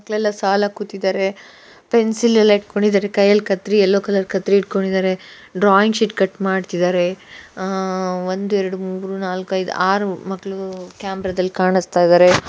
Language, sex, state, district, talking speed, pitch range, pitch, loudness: Kannada, female, Karnataka, Gulbarga, 150 wpm, 185-205 Hz, 195 Hz, -18 LUFS